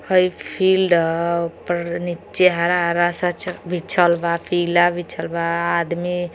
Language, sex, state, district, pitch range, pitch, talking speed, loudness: Bhojpuri, female, Uttar Pradesh, Gorakhpur, 170-180 Hz, 175 Hz, 150 wpm, -19 LUFS